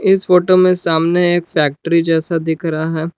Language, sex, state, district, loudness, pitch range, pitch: Hindi, male, Jharkhand, Palamu, -14 LUFS, 160-180 Hz, 170 Hz